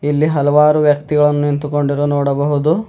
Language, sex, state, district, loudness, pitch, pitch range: Kannada, male, Karnataka, Bidar, -14 LUFS, 145 Hz, 145-150 Hz